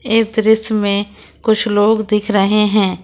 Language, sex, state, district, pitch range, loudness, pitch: Hindi, female, Jharkhand, Ranchi, 205-220 Hz, -15 LUFS, 210 Hz